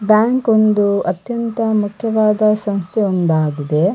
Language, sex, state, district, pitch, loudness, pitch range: Kannada, female, Karnataka, Dakshina Kannada, 210 Hz, -16 LUFS, 190-220 Hz